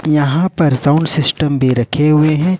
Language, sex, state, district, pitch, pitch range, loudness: Hindi, male, Jharkhand, Ranchi, 150 Hz, 145-160 Hz, -13 LUFS